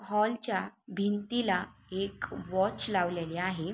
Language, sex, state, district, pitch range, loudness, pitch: Marathi, female, Maharashtra, Sindhudurg, 185-210 Hz, -32 LUFS, 195 Hz